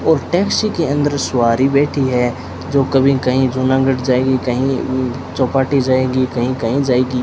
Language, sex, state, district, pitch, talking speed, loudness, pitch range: Hindi, male, Rajasthan, Bikaner, 130 Hz, 150 wpm, -16 LUFS, 125-140 Hz